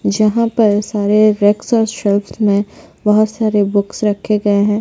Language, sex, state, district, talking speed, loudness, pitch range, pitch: Hindi, female, Chhattisgarh, Jashpur, 125 wpm, -14 LUFS, 205-215 Hz, 210 Hz